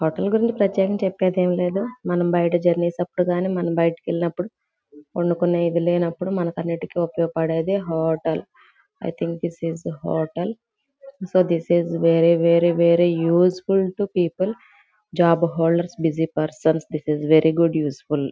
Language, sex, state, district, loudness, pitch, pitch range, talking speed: Telugu, female, Andhra Pradesh, Guntur, -21 LUFS, 170 Hz, 165-185 Hz, 150 wpm